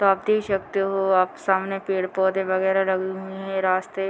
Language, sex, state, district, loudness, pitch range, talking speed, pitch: Hindi, female, Bihar, Muzaffarpur, -23 LUFS, 190-195 Hz, 205 wpm, 190 Hz